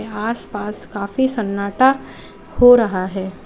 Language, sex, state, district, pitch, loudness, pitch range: Hindi, female, Uttar Pradesh, Lalitpur, 210 Hz, -18 LUFS, 200-245 Hz